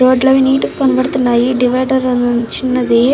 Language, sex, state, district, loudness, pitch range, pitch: Telugu, female, Andhra Pradesh, Krishna, -13 LUFS, 245-265 Hz, 255 Hz